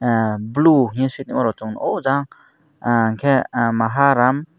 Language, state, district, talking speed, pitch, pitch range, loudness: Kokborok, Tripura, Dhalai, 170 wpm, 125 Hz, 115-140 Hz, -18 LUFS